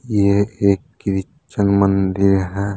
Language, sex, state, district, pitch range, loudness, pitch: Hindi, male, Uttar Pradesh, Saharanpur, 95-100 Hz, -18 LUFS, 100 Hz